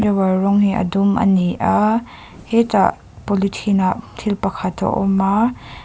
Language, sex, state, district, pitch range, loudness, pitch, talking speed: Mizo, female, Mizoram, Aizawl, 195-215 Hz, -18 LUFS, 200 Hz, 155 wpm